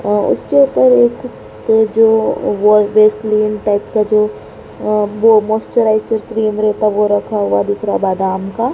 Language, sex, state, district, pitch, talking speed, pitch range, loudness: Hindi, male, Madhya Pradesh, Dhar, 215 Hz, 150 wpm, 205-220 Hz, -13 LUFS